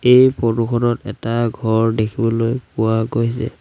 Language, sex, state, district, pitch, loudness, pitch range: Assamese, male, Assam, Sonitpur, 115 Hz, -18 LUFS, 110-120 Hz